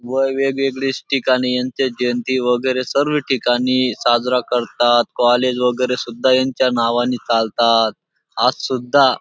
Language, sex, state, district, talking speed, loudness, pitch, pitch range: Marathi, male, Maharashtra, Dhule, 125 wpm, -17 LUFS, 125 Hz, 120-130 Hz